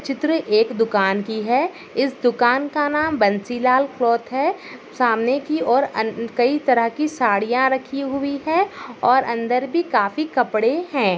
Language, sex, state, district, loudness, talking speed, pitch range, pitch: Hindi, female, Maharashtra, Pune, -20 LUFS, 155 wpm, 235-295 Hz, 255 Hz